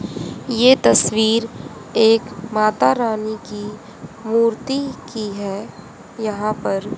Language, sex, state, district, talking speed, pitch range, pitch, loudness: Hindi, female, Haryana, Jhajjar, 95 wpm, 210-230 Hz, 220 Hz, -18 LUFS